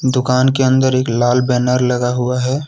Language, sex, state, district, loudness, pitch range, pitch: Hindi, male, Jharkhand, Deoghar, -15 LUFS, 125-130 Hz, 125 Hz